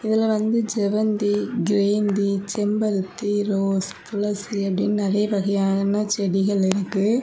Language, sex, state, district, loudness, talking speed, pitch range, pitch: Tamil, female, Tamil Nadu, Kanyakumari, -22 LUFS, 100 wpm, 195-210 Hz, 205 Hz